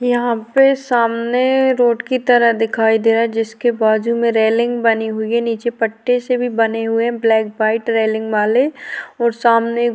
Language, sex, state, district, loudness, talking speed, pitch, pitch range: Hindi, female, Uttarakhand, Tehri Garhwal, -16 LUFS, 185 wpm, 230 Hz, 225-240 Hz